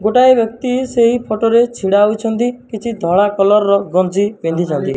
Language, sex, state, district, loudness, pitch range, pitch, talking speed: Odia, male, Odisha, Malkangiri, -14 LUFS, 200-235 Hz, 215 Hz, 155 wpm